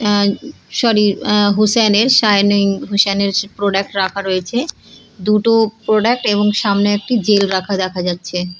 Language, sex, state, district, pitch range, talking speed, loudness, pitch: Bengali, female, West Bengal, Purulia, 200-215 Hz, 125 wpm, -15 LUFS, 205 Hz